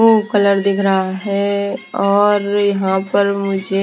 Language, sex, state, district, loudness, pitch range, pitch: Hindi, female, Himachal Pradesh, Shimla, -16 LUFS, 195-200 Hz, 200 Hz